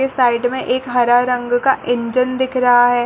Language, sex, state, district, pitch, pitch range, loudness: Hindi, female, Chhattisgarh, Balrampur, 245 Hz, 245-255 Hz, -16 LUFS